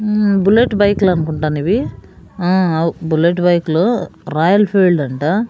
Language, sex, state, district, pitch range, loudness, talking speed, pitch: Telugu, female, Andhra Pradesh, Sri Satya Sai, 160-205 Hz, -15 LUFS, 140 wpm, 180 Hz